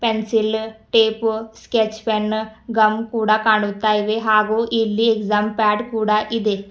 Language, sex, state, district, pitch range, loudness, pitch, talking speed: Kannada, female, Karnataka, Bidar, 215-225 Hz, -19 LUFS, 220 Hz, 125 wpm